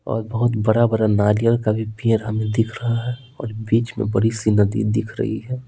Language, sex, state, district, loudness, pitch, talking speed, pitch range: Hindi, male, Bihar, Patna, -20 LUFS, 110 Hz, 210 wpm, 110-115 Hz